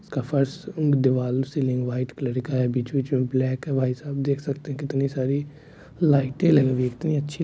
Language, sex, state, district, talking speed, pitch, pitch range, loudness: Hindi, male, Bihar, Supaul, 210 wpm, 135 Hz, 130-145 Hz, -24 LUFS